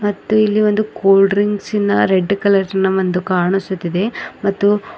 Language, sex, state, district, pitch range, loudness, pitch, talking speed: Kannada, female, Karnataka, Bidar, 190-205 Hz, -16 LUFS, 200 Hz, 130 wpm